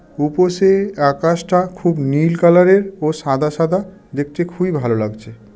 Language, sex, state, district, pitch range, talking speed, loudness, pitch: Bengali, male, West Bengal, Darjeeling, 145-180 Hz, 130 wpm, -16 LUFS, 165 Hz